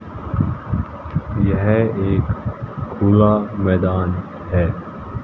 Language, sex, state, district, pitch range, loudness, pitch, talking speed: Hindi, male, Haryana, Jhajjar, 95-105 Hz, -19 LUFS, 100 Hz, 55 wpm